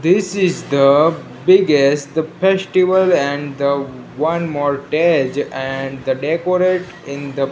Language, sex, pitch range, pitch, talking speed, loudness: English, male, 140-180 Hz, 150 Hz, 110 wpm, -16 LUFS